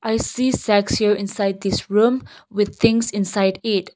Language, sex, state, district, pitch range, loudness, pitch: English, female, Nagaland, Kohima, 200-230 Hz, -20 LUFS, 210 Hz